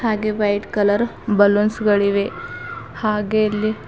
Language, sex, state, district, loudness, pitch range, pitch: Kannada, female, Karnataka, Bidar, -19 LUFS, 205-220 Hz, 215 Hz